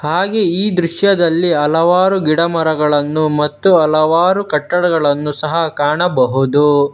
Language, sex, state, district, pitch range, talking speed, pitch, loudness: Kannada, male, Karnataka, Bangalore, 150-175 Hz, 85 wpm, 160 Hz, -14 LUFS